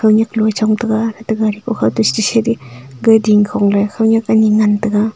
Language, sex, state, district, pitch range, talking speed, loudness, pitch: Wancho, female, Arunachal Pradesh, Longding, 210-225 Hz, 200 wpm, -14 LUFS, 215 Hz